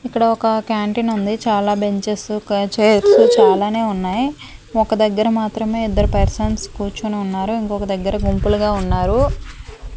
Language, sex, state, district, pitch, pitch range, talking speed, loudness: Telugu, female, Andhra Pradesh, Manyam, 215 Hz, 205-225 Hz, 125 wpm, -17 LUFS